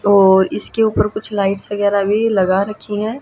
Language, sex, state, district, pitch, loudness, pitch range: Hindi, female, Haryana, Charkhi Dadri, 205 Hz, -16 LUFS, 195-215 Hz